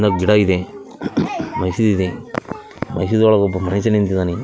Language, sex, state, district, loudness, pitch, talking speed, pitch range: Kannada, male, Karnataka, Raichur, -18 LUFS, 100 Hz, 135 wpm, 90-105 Hz